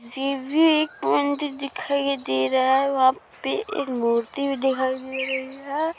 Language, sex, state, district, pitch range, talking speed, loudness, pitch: Hindi, female, Uttar Pradesh, Jyotiba Phule Nagar, 260-280 Hz, 110 wpm, -23 LUFS, 270 Hz